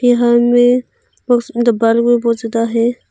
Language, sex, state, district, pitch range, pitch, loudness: Hindi, female, Arunachal Pradesh, Longding, 230-245 Hz, 240 Hz, -14 LUFS